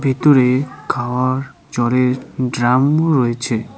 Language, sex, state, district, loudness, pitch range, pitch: Bengali, male, West Bengal, Cooch Behar, -17 LUFS, 120-135 Hz, 125 Hz